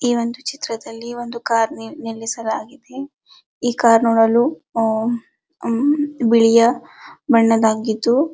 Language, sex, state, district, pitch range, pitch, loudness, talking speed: Kannada, male, Karnataka, Dharwad, 225-255 Hz, 235 Hz, -18 LUFS, 100 wpm